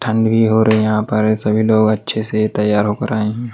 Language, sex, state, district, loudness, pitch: Hindi, male, Delhi, New Delhi, -15 LUFS, 110 Hz